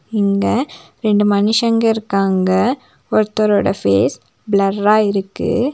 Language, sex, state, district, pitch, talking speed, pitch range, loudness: Tamil, female, Tamil Nadu, Nilgiris, 205 Hz, 85 wpm, 195-220 Hz, -16 LUFS